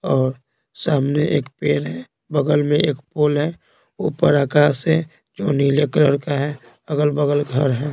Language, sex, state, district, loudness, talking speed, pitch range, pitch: Hindi, male, Bihar, Patna, -19 LUFS, 160 wpm, 135-150 Hz, 145 Hz